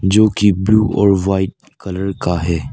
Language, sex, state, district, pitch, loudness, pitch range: Hindi, male, Arunachal Pradesh, Lower Dibang Valley, 95 Hz, -15 LUFS, 95-105 Hz